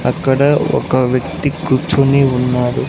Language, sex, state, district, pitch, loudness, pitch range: Telugu, male, Andhra Pradesh, Sri Satya Sai, 135 Hz, -14 LUFS, 125-145 Hz